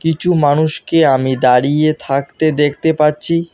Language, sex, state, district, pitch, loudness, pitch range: Bengali, male, West Bengal, Alipurduar, 155 Hz, -14 LUFS, 140-160 Hz